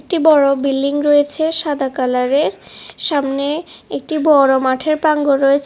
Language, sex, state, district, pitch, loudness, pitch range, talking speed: Bengali, female, Tripura, West Tripura, 290 Hz, -15 LUFS, 275-310 Hz, 125 wpm